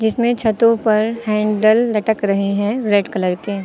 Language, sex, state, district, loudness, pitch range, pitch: Hindi, female, Uttar Pradesh, Lucknow, -16 LUFS, 205-225 Hz, 215 Hz